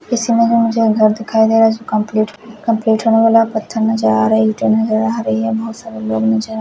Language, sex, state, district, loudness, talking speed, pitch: Hindi, male, Odisha, Khordha, -14 LUFS, 210 wpm, 220 Hz